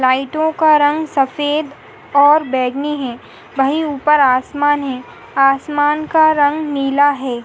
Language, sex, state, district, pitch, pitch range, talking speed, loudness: Hindi, female, Jharkhand, Sahebganj, 290 Hz, 270-300 Hz, 135 wpm, -15 LUFS